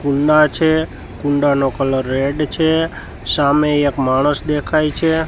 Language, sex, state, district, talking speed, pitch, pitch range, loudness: Gujarati, male, Gujarat, Gandhinagar, 125 wpm, 145 Hz, 140-155 Hz, -16 LUFS